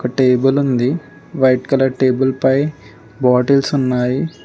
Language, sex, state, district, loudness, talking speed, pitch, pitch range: Telugu, male, Telangana, Mahabubabad, -16 LUFS, 120 wpm, 130 Hz, 125-140 Hz